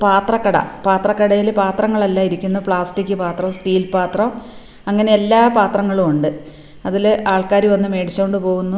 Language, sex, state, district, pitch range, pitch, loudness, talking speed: Malayalam, female, Kerala, Wayanad, 185-210 Hz, 195 Hz, -16 LUFS, 125 wpm